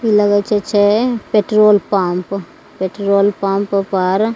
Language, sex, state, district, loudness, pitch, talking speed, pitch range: Maithili, female, Bihar, Begusarai, -15 LUFS, 205 Hz, 125 wpm, 195-210 Hz